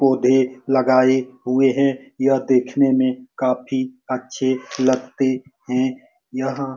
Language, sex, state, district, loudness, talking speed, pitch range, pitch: Hindi, male, Bihar, Supaul, -20 LUFS, 105 wpm, 130-135 Hz, 130 Hz